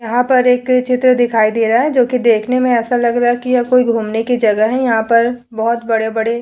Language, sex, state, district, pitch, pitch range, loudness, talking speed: Hindi, female, Uttar Pradesh, Hamirpur, 240 Hz, 225-250 Hz, -14 LUFS, 250 wpm